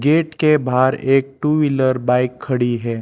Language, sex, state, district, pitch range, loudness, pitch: Hindi, male, Chhattisgarh, Raipur, 125-150 Hz, -17 LUFS, 130 Hz